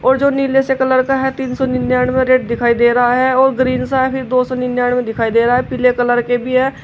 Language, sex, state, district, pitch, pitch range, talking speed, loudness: Hindi, female, Uttar Pradesh, Shamli, 255 Hz, 245-260 Hz, 265 wpm, -14 LUFS